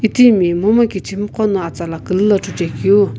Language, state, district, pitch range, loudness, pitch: Sumi, Nagaland, Kohima, 180-215 Hz, -15 LUFS, 200 Hz